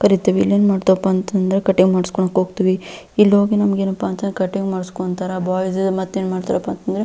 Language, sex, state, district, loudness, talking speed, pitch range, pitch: Kannada, female, Karnataka, Belgaum, -18 LUFS, 160 wpm, 185-195 Hz, 190 Hz